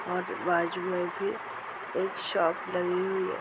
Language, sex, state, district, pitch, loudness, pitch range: Hindi, female, Bihar, Purnia, 180 Hz, -30 LUFS, 180-185 Hz